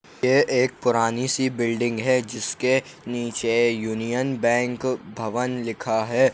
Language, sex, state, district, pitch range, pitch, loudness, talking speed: Kumaoni, male, Uttarakhand, Uttarkashi, 115-130 Hz, 120 Hz, -23 LUFS, 125 wpm